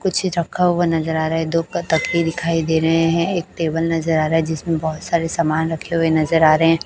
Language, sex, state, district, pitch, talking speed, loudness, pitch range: Hindi, female, Chhattisgarh, Raipur, 165 Hz, 260 wpm, -18 LUFS, 160-170 Hz